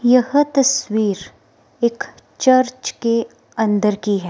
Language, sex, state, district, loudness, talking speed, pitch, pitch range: Hindi, female, Himachal Pradesh, Shimla, -18 LUFS, 110 wpm, 230 Hz, 205-255 Hz